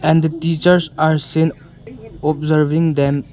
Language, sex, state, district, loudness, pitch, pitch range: English, male, Arunachal Pradesh, Longding, -16 LUFS, 155 Hz, 150-160 Hz